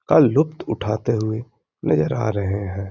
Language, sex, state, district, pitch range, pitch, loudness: Hindi, male, Uttar Pradesh, Hamirpur, 100-120 Hz, 110 Hz, -21 LUFS